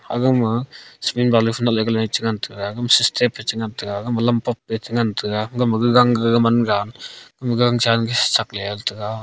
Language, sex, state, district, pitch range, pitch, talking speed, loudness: Wancho, male, Arunachal Pradesh, Longding, 110-120 Hz, 115 Hz, 195 wpm, -19 LUFS